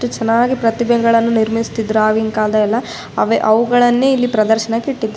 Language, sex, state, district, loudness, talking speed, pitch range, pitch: Kannada, female, Karnataka, Raichur, -15 LUFS, 115 wpm, 220-240 Hz, 230 Hz